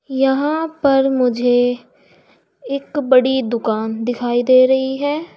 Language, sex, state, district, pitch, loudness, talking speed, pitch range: Hindi, female, Uttar Pradesh, Saharanpur, 260 Hz, -16 LUFS, 110 wpm, 245-275 Hz